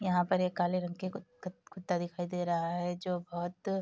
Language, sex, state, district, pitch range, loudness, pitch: Hindi, female, Bihar, Bhagalpur, 175-185 Hz, -34 LUFS, 180 Hz